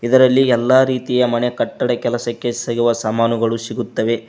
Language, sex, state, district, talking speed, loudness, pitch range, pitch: Kannada, male, Karnataka, Koppal, 125 wpm, -17 LUFS, 115-125 Hz, 120 Hz